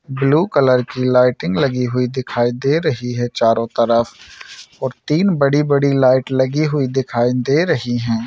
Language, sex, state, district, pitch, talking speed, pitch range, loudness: Hindi, male, Bihar, Saran, 130 Hz, 160 wpm, 120-140 Hz, -17 LUFS